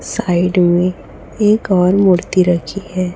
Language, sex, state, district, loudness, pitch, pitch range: Hindi, female, Chhattisgarh, Raipur, -14 LUFS, 185 Hz, 180-195 Hz